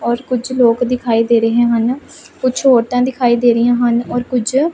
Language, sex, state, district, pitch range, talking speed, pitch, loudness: Punjabi, female, Punjab, Pathankot, 235-255 Hz, 190 wpm, 245 Hz, -14 LUFS